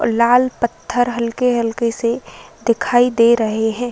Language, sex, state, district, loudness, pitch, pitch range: Hindi, female, Uttar Pradesh, Varanasi, -17 LUFS, 235 Hz, 230-245 Hz